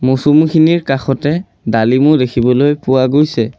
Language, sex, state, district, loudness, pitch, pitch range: Assamese, male, Assam, Sonitpur, -12 LUFS, 135 Hz, 125-150 Hz